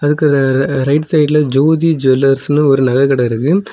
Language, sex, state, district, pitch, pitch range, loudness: Tamil, male, Tamil Nadu, Kanyakumari, 140 Hz, 135-150 Hz, -12 LUFS